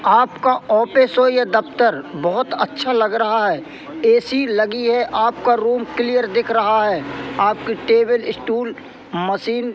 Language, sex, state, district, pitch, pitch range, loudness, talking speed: Hindi, male, Madhya Pradesh, Katni, 240 Hz, 225-260 Hz, -18 LUFS, 150 wpm